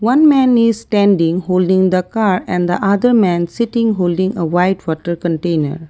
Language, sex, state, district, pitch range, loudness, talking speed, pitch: English, female, Assam, Kamrup Metropolitan, 175-220 Hz, -14 LUFS, 170 wpm, 185 Hz